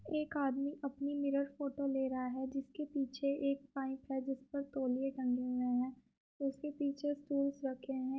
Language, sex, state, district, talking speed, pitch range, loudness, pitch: Hindi, female, Uttar Pradesh, Muzaffarnagar, 175 wpm, 265-280 Hz, -39 LUFS, 275 Hz